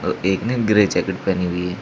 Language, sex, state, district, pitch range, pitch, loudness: Hindi, male, Uttar Pradesh, Shamli, 90-105 Hz, 95 Hz, -19 LUFS